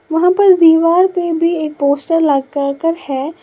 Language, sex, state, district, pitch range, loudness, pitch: Hindi, female, Uttar Pradesh, Lalitpur, 285-340 Hz, -13 LUFS, 330 Hz